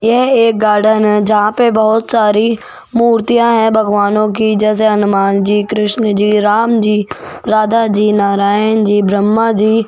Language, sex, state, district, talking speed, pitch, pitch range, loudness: Hindi, female, Rajasthan, Jaipur, 150 wpm, 215 Hz, 210-225 Hz, -12 LUFS